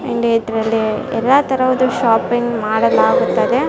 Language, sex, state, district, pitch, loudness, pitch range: Kannada, female, Karnataka, Bellary, 235 Hz, -15 LUFS, 225-255 Hz